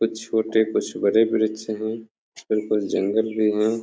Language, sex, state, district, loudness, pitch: Hindi, male, Bihar, Begusarai, -22 LUFS, 110 Hz